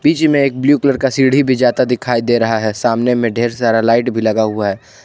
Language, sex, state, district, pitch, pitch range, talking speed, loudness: Hindi, male, Jharkhand, Ranchi, 120 Hz, 115-130 Hz, 250 wpm, -14 LUFS